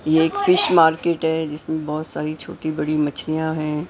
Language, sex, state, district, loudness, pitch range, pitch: Hindi, male, Maharashtra, Mumbai Suburban, -20 LUFS, 155-165 Hz, 160 Hz